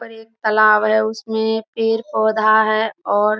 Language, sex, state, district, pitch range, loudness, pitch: Hindi, female, Bihar, Kishanganj, 215-225 Hz, -17 LUFS, 220 Hz